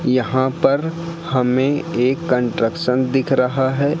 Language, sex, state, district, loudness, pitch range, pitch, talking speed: Hindi, male, Madhya Pradesh, Katni, -18 LUFS, 125-145 Hz, 130 Hz, 120 wpm